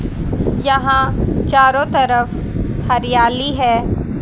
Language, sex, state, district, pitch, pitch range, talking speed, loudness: Hindi, female, Haryana, Rohtak, 260 Hz, 240-270 Hz, 70 wpm, -15 LUFS